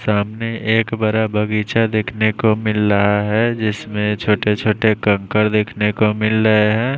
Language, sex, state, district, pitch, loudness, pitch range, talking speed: Hindi, male, Maharashtra, Mumbai Suburban, 105 Hz, -17 LUFS, 105-110 Hz, 165 wpm